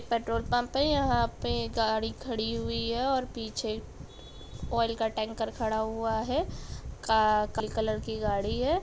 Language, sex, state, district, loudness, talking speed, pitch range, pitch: Hindi, female, Bihar, Gopalganj, -30 LUFS, 150 wpm, 220-240 Hz, 225 Hz